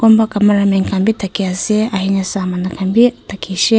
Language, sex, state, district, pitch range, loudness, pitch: Nagamese, female, Nagaland, Kohima, 190-215 Hz, -15 LUFS, 195 Hz